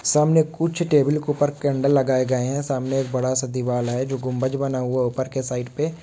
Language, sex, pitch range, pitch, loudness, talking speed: Hindi, male, 130-145 Hz, 135 Hz, -22 LUFS, 230 wpm